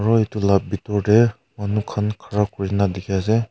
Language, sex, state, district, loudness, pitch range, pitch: Nagamese, male, Nagaland, Kohima, -21 LUFS, 100-110 Hz, 105 Hz